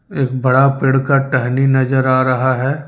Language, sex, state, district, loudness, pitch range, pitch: Hindi, male, Jharkhand, Deoghar, -14 LUFS, 130-135 Hz, 135 Hz